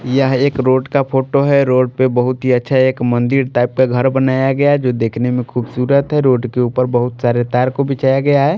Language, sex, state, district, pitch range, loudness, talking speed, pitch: Hindi, male, Maharashtra, Washim, 125-135 Hz, -15 LUFS, 230 wpm, 130 Hz